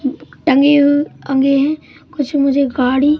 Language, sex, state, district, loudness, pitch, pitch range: Hindi, male, Madhya Pradesh, Katni, -14 LUFS, 280 Hz, 270-290 Hz